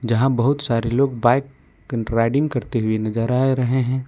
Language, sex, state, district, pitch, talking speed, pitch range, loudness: Hindi, male, Jharkhand, Ranchi, 125 Hz, 175 wpm, 115-135 Hz, -20 LUFS